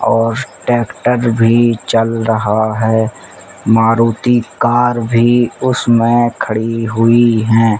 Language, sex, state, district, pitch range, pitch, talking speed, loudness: Hindi, male, Uttar Pradesh, Ghazipur, 115-120 Hz, 115 Hz, 100 wpm, -13 LUFS